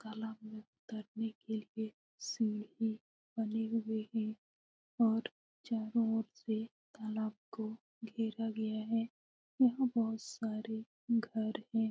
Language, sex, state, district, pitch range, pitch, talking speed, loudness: Hindi, female, Bihar, Lakhisarai, 220-225 Hz, 225 Hz, 125 wpm, -38 LUFS